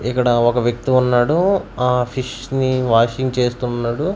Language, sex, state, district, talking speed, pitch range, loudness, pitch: Telugu, male, Andhra Pradesh, Manyam, 130 wpm, 120-130 Hz, -17 LUFS, 125 Hz